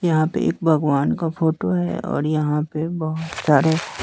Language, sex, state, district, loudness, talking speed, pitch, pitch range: Hindi, male, Bihar, West Champaran, -21 LUFS, 180 wpm, 155 Hz, 150-160 Hz